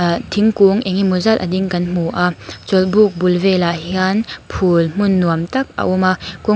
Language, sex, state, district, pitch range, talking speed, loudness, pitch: Mizo, female, Mizoram, Aizawl, 175-200 Hz, 210 wpm, -16 LUFS, 185 Hz